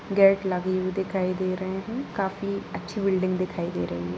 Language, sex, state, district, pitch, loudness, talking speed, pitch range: Hindi, female, Bihar, Jahanabad, 185 Hz, -26 LUFS, 200 wpm, 185-195 Hz